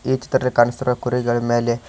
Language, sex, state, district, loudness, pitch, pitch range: Kannada, male, Karnataka, Koppal, -19 LUFS, 120 Hz, 120-125 Hz